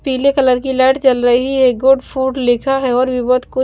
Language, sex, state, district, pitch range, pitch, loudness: Hindi, female, Bihar, Kaimur, 250-265 Hz, 260 Hz, -14 LUFS